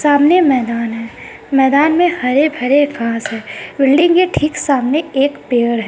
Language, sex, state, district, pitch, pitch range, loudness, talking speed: Hindi, female, Bihar, Kishanganj, 275 Hz, 235-300 Hz, -14 LUFS, 155 wpm